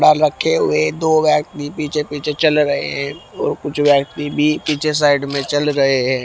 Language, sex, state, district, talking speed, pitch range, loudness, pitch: Hindi, male, Haryana, Rohtak, 190 wpm, 140-150 Hz, -17 LUFS, 145 Hz